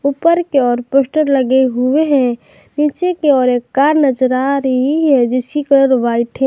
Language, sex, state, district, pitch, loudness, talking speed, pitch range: Hindi, female, Jharkhand, Garhwa, 270 Hz, -14 LUFS, 175 wpm, 255-295 Hz